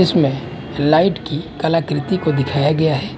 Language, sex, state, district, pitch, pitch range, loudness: Hindi, male, Haryana, Charkhi Dadri, 155 Hz, 145-165 Hz, -18 LUFS